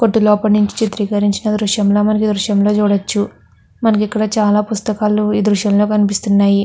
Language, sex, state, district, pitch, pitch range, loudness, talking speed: Telugu, female, Andhra Pradesh, Guntur, 210 Hz, 205-215 Hz, -15 LUFS, 135 wpm